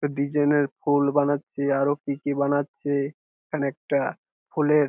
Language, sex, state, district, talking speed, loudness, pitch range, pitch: Bengali, male, West Bengal, Jhargram, 145 wpm, -25 LUFS, 140-145 Hz, 145 Hz